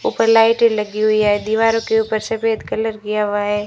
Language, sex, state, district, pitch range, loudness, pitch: Hindi, female, Rajasthan, Bikaner, 210-225 Hz, -17 LUFS, 220 Hz